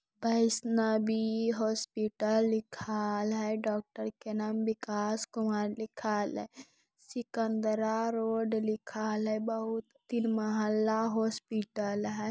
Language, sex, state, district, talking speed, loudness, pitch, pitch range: Hindi, female, Bihar, Lakhisarai, 100 wpm, -33 LUFS, 220 Hz, 215-225 Hz